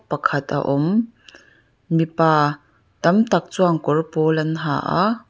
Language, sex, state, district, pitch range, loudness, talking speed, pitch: Mizo, female, Mizoram, Aizawl, 145-180 Hz, -20 LUFS, 135 wpm, 160 Hz